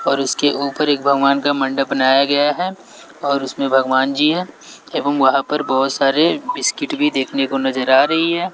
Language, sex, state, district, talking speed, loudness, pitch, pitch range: Hindi, male, Bihar, West Champaran, 195 wpm, -17 LUFS, 140 Hz, 135-150 Hz